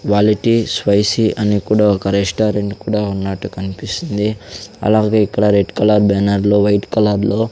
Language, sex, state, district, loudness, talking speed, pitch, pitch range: Telugu, male, Andhra Pradesh, Sri Satya Sai, -15 LUFS, 150 wpm, 105 Hz, 100-105 Hz